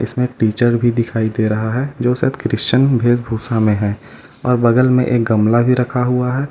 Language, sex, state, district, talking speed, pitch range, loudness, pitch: Hindi, male, Uttar Pradesh, Lalitpur, 210 wpm, 110-125 Hz, -16 LUFS, 120 Hz